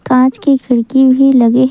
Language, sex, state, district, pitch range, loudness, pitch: Chhattisgarhi, female, Chhattisgarh, Sukma, 255-265 Hz, -10 LUFS, 260 Hz